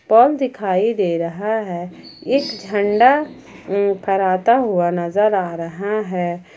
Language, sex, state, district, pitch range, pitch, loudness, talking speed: Hindi, female, Jharkhand, Ranchi, 180-220 Hz, 200 Hz, -18 LUFS, 130 wpm